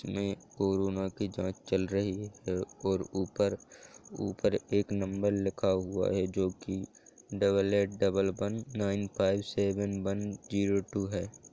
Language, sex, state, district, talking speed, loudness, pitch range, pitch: Hindi, male, Jharkhand, Jamtara, 140 wpm, -32 LUFS, 95-100 Hz, 100 Hz